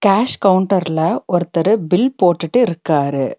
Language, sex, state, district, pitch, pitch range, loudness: Tamil, female, Tamil Nadu, Nilgiris, 180 Hz, 165-215 Hz, -16 LUFS